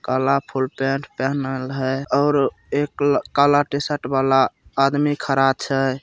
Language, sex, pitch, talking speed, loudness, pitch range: Bhojpuri, male, 135 Hz, 130 wpm, -20 LUFS, 135-140 Hz